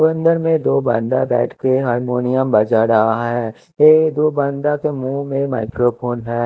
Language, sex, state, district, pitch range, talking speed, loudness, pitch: Hindi, male, Punjab, Kapurthala, 120-150 Hz, 165 wpm, -17 LUFS, 130 Hz